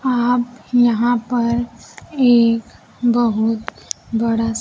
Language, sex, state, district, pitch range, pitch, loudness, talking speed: Hindi, female, Bihar, Kaimur, 230-245 Hz, 240 Hz, -18 LUFS, 90 wpm